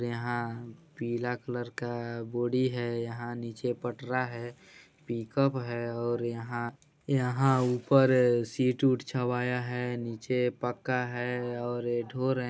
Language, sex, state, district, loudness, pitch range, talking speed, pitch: Hindi, male, Chhattisgarh, Bilaspur, -31 LUFS, 120-125 Hz, 140 wpm, 120 Hz